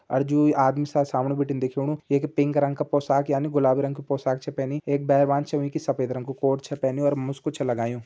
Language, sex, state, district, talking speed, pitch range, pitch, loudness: Hindi, male, Uttarakhand, Uttarkashi, 255 wpm, 135-145 Hz, 140 Hz, -24 LUFS